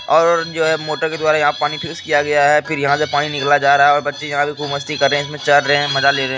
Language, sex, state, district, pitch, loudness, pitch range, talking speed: Hindi, male, Bihar, Supaul, 145 Hz, -16 LUFS, 145-155 Hz, 350 wpm